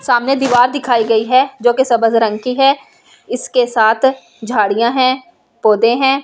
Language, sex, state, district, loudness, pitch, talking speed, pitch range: Hindi, female, Delhi, New Delhi, -14 LUFS, 245 Hz, 185 wpm, 230-265 Hz